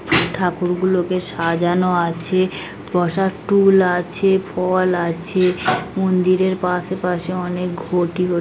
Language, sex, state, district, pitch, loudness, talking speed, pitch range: Bengali, female, West Bengal, Kolkata, 180 Hz, -18 LUFS, 115 wpm, 175-185 Hz